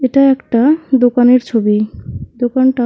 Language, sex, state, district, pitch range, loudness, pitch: Bengali, female, West Bengal, Alipurduar, 240-265 Hz, -13 LUFS, 250 Hz